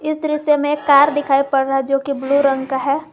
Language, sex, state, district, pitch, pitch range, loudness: Hindi, female, Jharkhand, Garhwa, 280 Hz, 275-295 Hz, -16 LUFS